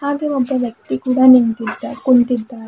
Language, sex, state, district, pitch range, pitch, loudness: Kannada, female, Karnataka, Bidar, 235-260 Hz, 250 Hz, -15 LUFS